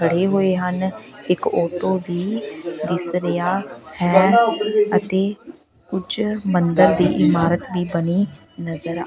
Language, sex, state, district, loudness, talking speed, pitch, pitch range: Punjabi, female, Punjab, Pathankot, -19 LUFS, 120 wpm, 180 Hz, 170-195 Hz